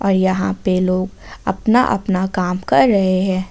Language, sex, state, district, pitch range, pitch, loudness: Hindi, female, Jharkhand, Ranchi, 185-195 Hz, 190 Hz, -17 LUFS